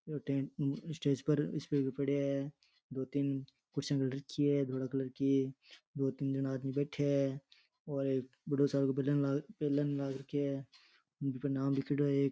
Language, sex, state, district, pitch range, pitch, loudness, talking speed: Rajasthani, male, Rajasthan, Nagaur, 135-145 Hz, 140 Hz, -36 LUFS, 185 wpm